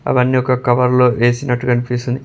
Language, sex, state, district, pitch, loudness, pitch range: Telugu, male, Telangana, Mahabubabad, 125 Hz, -15 LUFS, 120-125 Hz